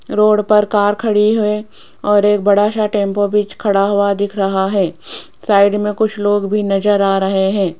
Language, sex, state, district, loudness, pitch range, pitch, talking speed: Hindi, female, Rajasthan, Jaipur, -15 LUFS, 200-210 Hz, 205 Hz, 190 wpm